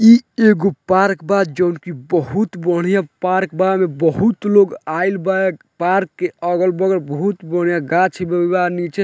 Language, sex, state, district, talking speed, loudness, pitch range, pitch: Bhojpuri, male, Bihar, Muzaffarpur, 160 wpm, -17 LUFS, 175-195 Hz, 185 Hz